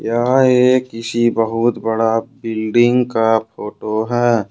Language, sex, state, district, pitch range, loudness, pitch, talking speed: Hindi, male, Jharkhand, Ranchi, 115-120 Hz, -16 LUFS, 115 Hz, 120 wpm